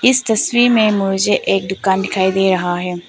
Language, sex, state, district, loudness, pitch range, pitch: Hindi, female, Arunachal Pradesh, Papum Pare, -15 LUFS, 190-215 Hz, 195 Hz